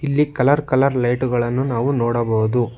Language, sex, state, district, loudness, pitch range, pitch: Kannada, male, Karnataka, Bangalore, -18 LUFS, 120-140 Hz, 125 Hz